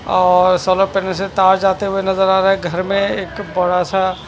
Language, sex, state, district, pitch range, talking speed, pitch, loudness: Hindi, male, Punjab, Fazilka, 185-195 Hz, 180 wpm, 190 Hz, -15 LUFS